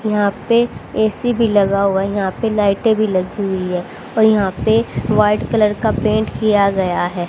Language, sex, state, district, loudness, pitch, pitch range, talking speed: Hindi, female, Haryana, Jhajjar, -16 LUFS, 210 Hz, 195-220 Hz, 195 wpm